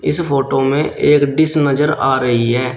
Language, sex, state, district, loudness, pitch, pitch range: Hindi, male, Uttar Pradesh, Shamli, -14 LUFS, 140 Hz, 130-150 Hz